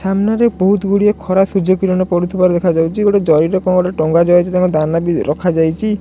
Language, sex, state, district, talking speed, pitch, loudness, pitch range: Odia, male, Odisha, Khordha, 180 wpm, 185 Hz, -14 LUFS, 170-195 Hz